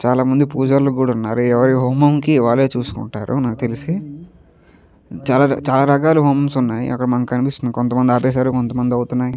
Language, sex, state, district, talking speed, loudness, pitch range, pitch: Telugu, male, Andhra Pradesh, Chittoor, 140 wpm, -17 LUFS, 125-140 Hz, 130 Hz